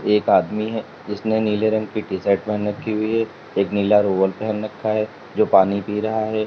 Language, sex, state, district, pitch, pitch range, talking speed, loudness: Hindi, male, Uttar Pradesh, Lalitpur, 105 Hz, 100-110 Hz, 220 wpm, -20 LUFS